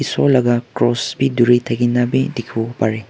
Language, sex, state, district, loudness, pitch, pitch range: Nagamese, male, Nagaland, Kohima, -17 LUFS, 120 Hz, 120-125 Hz